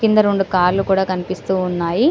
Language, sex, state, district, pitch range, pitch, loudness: Telugu, female, Telangana, Karimnagar, 180-200 Hz, 190 Hz, -18 LUFS